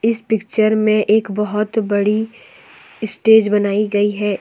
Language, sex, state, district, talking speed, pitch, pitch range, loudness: Hindi, female, Jharkhand, Deoghar, 150 wpm, 215 Hz, 210-220 Hz, -16 LUFS